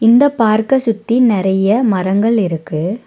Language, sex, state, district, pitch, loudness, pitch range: Tamil, female, Tamil Nadu, Nilgiris, 220 Hz, -14 LUFS, 190-235 Hz